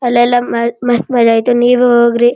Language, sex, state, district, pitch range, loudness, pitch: Kannada, male, Karnataka, Shimoga, 235-245 Hz, -11 LUFS, 240 Hz